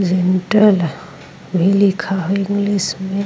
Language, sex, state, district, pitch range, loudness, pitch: Bhojpuri, female, Uttar Pradesh, Ghazipur, 180-200 Hz, -16 LUFS, 190 Hz